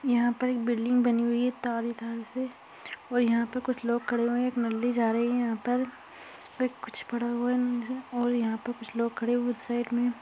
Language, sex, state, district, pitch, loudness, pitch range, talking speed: Hindi, female, Rajasthan, Churu, 240 Hz, -29 LUFS, 235-245 Hz, 230 wpm